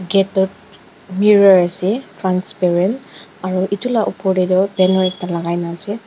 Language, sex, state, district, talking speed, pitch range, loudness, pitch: Nagamese, female, Nagaland, Dimapur, 160 wpm, 185-200 Hz, -16 LUFS, 190 Hz